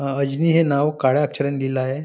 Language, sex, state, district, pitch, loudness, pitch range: Marathi, male, Maharashtra, Nagpur, 140 Hz, -20 LUFS, 135-150 Hz